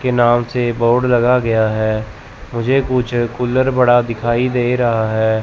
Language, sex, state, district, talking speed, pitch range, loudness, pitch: Hindi, male, Chandigarh, Chandigarh, 165 wpm, 110-125 Hz, -15 LUFS, 120 Hz